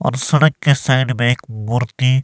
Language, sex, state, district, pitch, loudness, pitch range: Hindi, male, Himachal Pradesh, Shimla, 130 Hz, -16 LUFS, 120-140 Hz